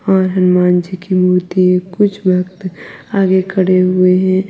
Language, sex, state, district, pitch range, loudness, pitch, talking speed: Hindi, female, Uttar Pradesh, Lalitpur, 180-190 Hz, -13 LUFS, 185 Hz, 145 wpm